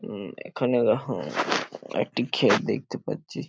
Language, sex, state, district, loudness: Bengali, male, West Bengal, Paschim Medinipur, -26 LUFS